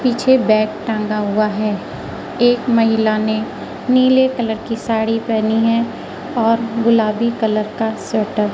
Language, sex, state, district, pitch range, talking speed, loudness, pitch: Hindi, female, Madhya Pradesh, Katni, 215-235 Hz, 140 wpm, -17 LUFS, 225 Hz